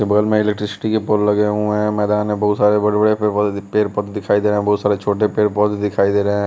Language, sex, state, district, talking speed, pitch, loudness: Hindi, male, Bihar, West Champaran, 295 wpm, 105 Hz, -17 LUFS